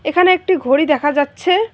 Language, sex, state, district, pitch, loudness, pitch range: Bengali, female, West Bengal, Alipurduar, 325 Hz, -15 LUFS, 290-370 Hz